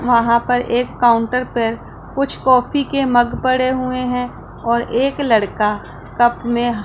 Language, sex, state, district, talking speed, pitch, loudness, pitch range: Hindi, female, Punjab, Pathankot, 150 wpm, 245 Hz, -17 LUFS, 235-255 Hz